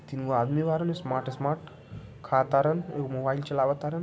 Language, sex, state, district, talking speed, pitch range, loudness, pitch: Hindi, male, Bihar, Sitamarhi, 150 wpm, 130-150 Hz, -28 LUFS, 140 Hz